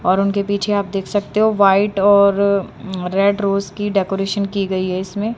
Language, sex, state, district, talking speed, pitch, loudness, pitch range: Hindi, female, Haryana, Charkhi Dadri, 190 wpm, 200 Hz, -17 LUFS, 195-205 Hz